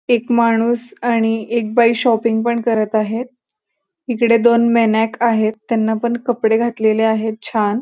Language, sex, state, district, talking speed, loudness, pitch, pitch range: Marathi, female, Maharashtra, Pune, 155 wpm, -16 LUFS, 230 Hz, 220-235 Hz